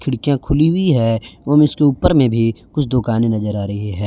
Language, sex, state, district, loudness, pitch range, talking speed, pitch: Hindi, male, Jharkhand, Garhwa, -16 LUFS, 115-145 Hz, 220 wpm, 125 Hz